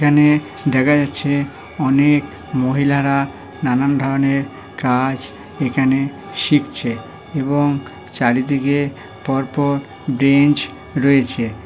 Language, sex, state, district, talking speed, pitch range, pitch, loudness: Bengali, male, West Bengal, Kolkata, 75 wpm, 130-140 Hz, 140 Hz, -18 LUFS